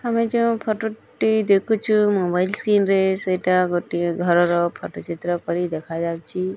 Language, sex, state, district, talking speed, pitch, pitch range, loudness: Odia, male, Odisha, Nuapada, 135 wpm, 185 Hz, 175-215 Hz, -20 LUFS